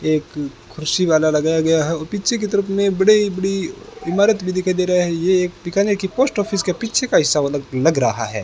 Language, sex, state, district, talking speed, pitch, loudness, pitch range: Hindi, male, Rajasthan, Bikaner, 225 wpm, 180 Hz, -18 LUFS, 155-200 Hz